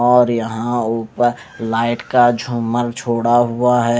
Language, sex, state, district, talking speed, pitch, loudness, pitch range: Hindi, male, Maharashtra, Mumbai Suburban, 135 wpm, 120 Hz, -17 LUFS, 115-120 Hz